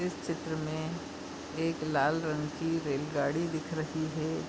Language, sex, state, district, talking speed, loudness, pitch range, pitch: Hindi, male, Goa, North and South Goa, 145 wpm, -33 LUFS, 155-165 Hz, 155 Hz